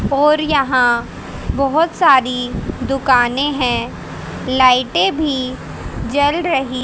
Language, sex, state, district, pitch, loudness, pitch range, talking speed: Hindi, female, Haryana, Rohtak, 270 Hz, -16 LUFS, 250-295 Hz, 90 wpm